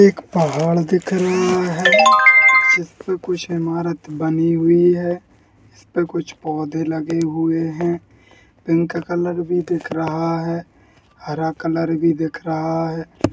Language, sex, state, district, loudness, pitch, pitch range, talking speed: Hindi, female, Bihar, East Champaran, -17 LUFS, 165 Hz, 160-175 Hz, 155 wpm